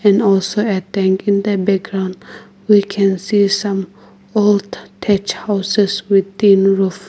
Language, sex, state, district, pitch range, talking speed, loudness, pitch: English, female, Nagaland, Kohima, 195-205 Hz, 145 wpm, -15 LUFS, 200 Hz